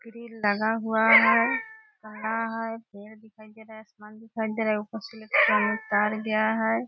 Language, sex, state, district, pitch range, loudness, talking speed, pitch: Hindi, female, Bihar, Purnia, 215-225 Hz, -24 LUFS, 200 wpm, 220 Hz